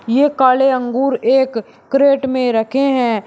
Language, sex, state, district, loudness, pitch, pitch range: Hindi, male, Uttar Pradesh, Shamli, -15 LUFS, 260 Hz, 240-270 Hz